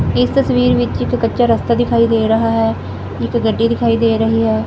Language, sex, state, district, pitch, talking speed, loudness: Punjabi, female, Punjab, Fazilka, 220 Hz, 205 wpm, -15 LUFS